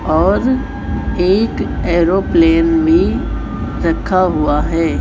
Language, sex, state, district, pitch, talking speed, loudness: Hindi, male, Chhattisgarh, Raipur, 190 Hz, 85 wpm, -15 LUFS